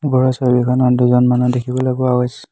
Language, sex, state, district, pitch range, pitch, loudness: Assamese, male, Assam, Hailakandi, 125-130 Hz, 125 Hz, -15 LUFS